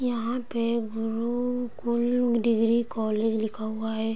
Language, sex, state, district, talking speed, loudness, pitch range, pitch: Hindi, female, Bihar, Sitamarhi, 115 wpm, -27 LUFS, 220-240 Hz, 230 Hz